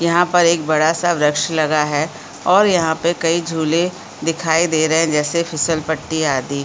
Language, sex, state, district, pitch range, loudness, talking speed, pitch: Hindi, female, Chhattisgarh, Korba, 155-170 Hz, -17 LUFS, 190 wpm, 160 Hz